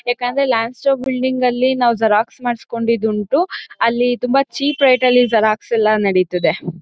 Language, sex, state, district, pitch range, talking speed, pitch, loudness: Kannada, female, Karnataka, Mysore, 220-255 Hz, 150 wpm, 240 Hz, -16 LUFS